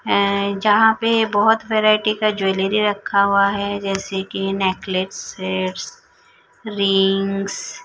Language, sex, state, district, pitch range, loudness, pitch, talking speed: Hindi, female, Chhattisgarh, Raipur, 195-215 Hz, -18 LUFS, 200 Hz, 120 wpm